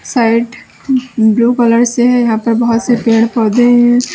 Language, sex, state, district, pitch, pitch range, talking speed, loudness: Hindi, female, Uttar Pradesh, Lalitpur, 235 Hz, 230-245 Hz, 175 wpm, -11 LUFS